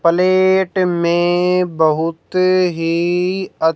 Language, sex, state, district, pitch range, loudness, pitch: Hindi, female, Haryana, Jhajjar, 170-185 Hz, -16 LUFS, 175 Hz